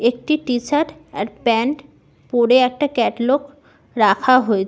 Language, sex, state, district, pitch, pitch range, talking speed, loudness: Bengali, female, West Bengal, Malda, 255 Hz, 235-285 Hz, 130 wpm, -18 LUFS